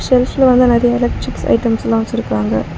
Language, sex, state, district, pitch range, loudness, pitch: Tamil, female, Tamil Nadu, Chennai, 225-250 Hz, -14 LUFS, 235 Hz